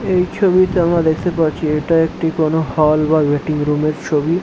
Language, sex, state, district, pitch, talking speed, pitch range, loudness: Bengali, male, West Bengal, Dakshin Dinajpur, 160 Hz, 190 wpm, 150-170 Hz, -16 LUFS